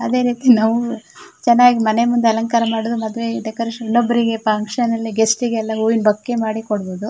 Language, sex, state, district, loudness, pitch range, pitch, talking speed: Kannada, female, Karnataka, Shimoga, -17 LUFS, 220-235 Hz, 230 Hz, 150 wpm